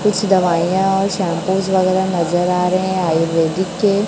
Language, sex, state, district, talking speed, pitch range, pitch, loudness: Hindi, female, Chhattisgarh, Raipur, 160 wpm, 175-195 Hz, 185 Hz, -16 LUFS